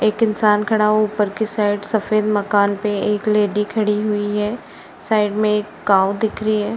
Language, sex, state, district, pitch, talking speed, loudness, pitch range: Hindi, female, Uttar Pradesh, Varanasi, 210 Hz, 195 wpm, -18 LUFS, 205-215 Hz